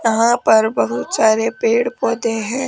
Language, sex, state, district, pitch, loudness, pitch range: Hindi, female, Rajasthan, Jaipur, 230 Hz, -16 LUFS, 220-240 Hz